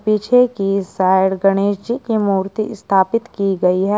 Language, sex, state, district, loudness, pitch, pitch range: Hindi, male, Uttar Pradesh, Shamli, -17 LUFS, 200 Hz, 190-215 Hz